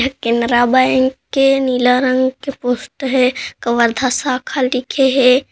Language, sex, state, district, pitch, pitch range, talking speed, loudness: Hindi, female, Chhattisgarh, Kabirdham, 255 Hz, 250-265 Hz, 140 wpm, -15 LUFS